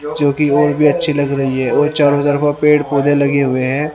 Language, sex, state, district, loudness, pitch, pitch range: Hindi, male, Haryana, Rohtak, -14 LUFS, 145 Hz, 140-150 Hz